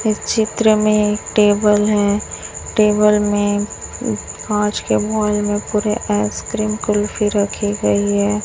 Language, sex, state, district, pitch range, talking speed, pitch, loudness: Hindi, female, Chhattisgarh, Raipur, 205-210 Hz, 120 wpm, 210 Hz, -17 LUFS